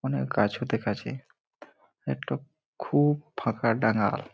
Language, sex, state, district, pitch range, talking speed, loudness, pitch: Bengali, male, West Bengal, Malda, 105-145 Hz, 95 wpm, -28 LUFS, 110 Hz